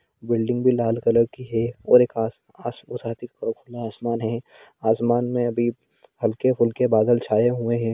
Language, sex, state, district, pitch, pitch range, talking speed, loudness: Hindi, male, Jharkhand, Sahebganj, 120 Hz, 115-120 Hz, 130 wpm, -22 LUFS